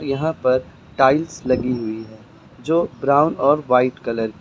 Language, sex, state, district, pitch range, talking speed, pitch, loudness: Hindi, male, Uttar Pradesh, Lucknow, 125-145 Hz, 165 wpm, 130 Hz, -19 LUFS